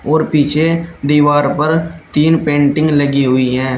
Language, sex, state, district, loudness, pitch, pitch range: Hindi, male, Uttar Pradesh, Shamli, -13 LUFS, 150 Hz, 140-160 Hz